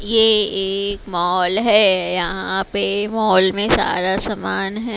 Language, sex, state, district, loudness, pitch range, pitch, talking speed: Hindi, female, Haryana, Rohtak, -16 LUFS, 185-210 Hz, 195 Hz, 135 wpm